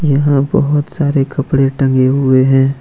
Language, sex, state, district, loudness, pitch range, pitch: Hindi, male, Jharkhand, Ranchi, -13 LUFS, 135-145 Hz, 135 Hz